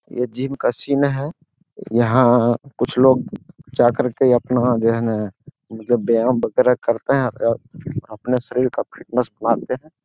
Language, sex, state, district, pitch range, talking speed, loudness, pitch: Hindi, male, Bihar, Jamui, 115-135 Hz, 155 wpm, -19 LUFS, 125 Hz